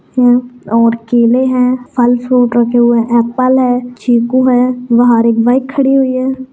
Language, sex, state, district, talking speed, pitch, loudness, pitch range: Kumaoni, female, Uttarakhand, Tehri Garhwal, 155 wpm, 245 Hz, -11 LUFS, 235-255 Hz